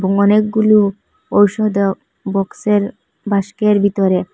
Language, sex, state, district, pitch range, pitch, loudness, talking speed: Bengali, female, Assam, Hailakandi, 195-210 Hz, 200 Hz, -15 LUFS, 70 wpm